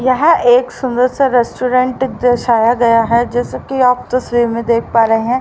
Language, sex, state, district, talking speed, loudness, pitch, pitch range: Hindi, female, Haryana, Rohtak, 190 wpm, -13 LUFS, 245 Hz, 235-255 Hz